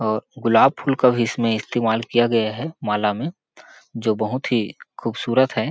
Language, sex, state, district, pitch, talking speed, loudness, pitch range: Hindi, male, Chhattisgarh, Sarguja, 115 Hz, 180 wpm, -21 LUFS, 110-125 Hz